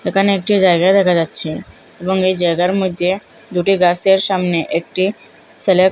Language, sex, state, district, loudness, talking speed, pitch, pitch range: Bengali, female, Assam, Hailakandi, -14 LUFS, 150 wpm, 185 Hz, 175-195 Hz